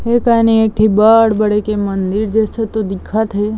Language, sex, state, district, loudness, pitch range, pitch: Chhattisgarhi, female, Chhattisgarh, Bilaspur, -14 LUFS, 210-225 Hz, 215 Hz